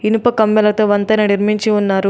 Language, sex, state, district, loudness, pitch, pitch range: Telugu, female, Telangana, Adilabad, -14 LUFS, 210 Hz, 205-215 Hz